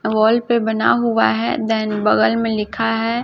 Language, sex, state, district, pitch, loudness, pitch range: Hindi, female, Chhattisgarh, Raipur, 220 Hz, -17 LUFS, 205-225 Hz